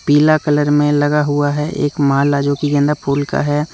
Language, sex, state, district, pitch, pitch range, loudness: Hindi, male, Jharkhand, Deoghar, 145 Hz, 145-150 Hz, -15 LUFS